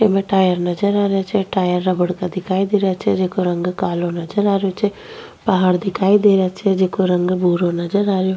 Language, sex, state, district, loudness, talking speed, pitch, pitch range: Rajasthani, female, Rajasthan, Nagaur, -18 LUFS, 230 wpm, 190 Hz, 180-200 Hz